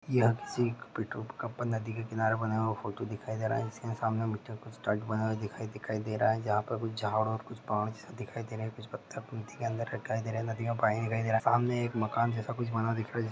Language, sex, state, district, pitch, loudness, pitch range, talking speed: Hindi, male, Jharkhand, Jamtara, 115 Hz, -33 LUFS, 110-115 Hz, 250 wpm